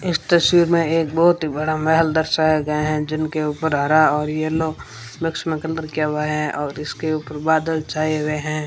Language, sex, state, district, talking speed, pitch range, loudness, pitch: Hindi, female, Rajasthan, Bikaner, 195 wpm, 150-160 Hz, -20 LUFS, 155 Hz